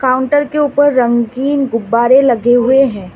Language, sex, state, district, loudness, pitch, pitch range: Hindi, female, Assam, Kamrup Metropolitan, -12 LUFS, 255 Hz, 235-275 Hz